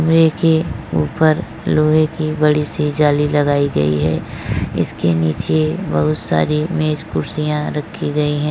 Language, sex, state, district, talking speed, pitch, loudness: Hindi, female, Uttar Pradesh, Etah, 140 wpm, 150 Hz, -17 LUFS